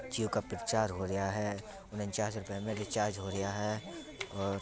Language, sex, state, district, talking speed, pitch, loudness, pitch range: Bundeli, male, Uttar Pradesh, Budaun, 180 wpm, 105 Hz, -36 LUFS, 100-105 Hz